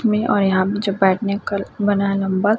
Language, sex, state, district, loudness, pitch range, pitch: Hindi, male, Chhattisgarh, Raipur, -19 LUFS, 195-205 Hz, 200 Hz